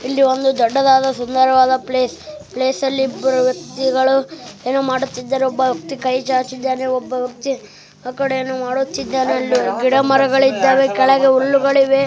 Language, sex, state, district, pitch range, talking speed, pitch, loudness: Kannada, male, Karnataka, Bellary, 255-270 Hz, 135 wpm, 265 Hz, -16 LUFS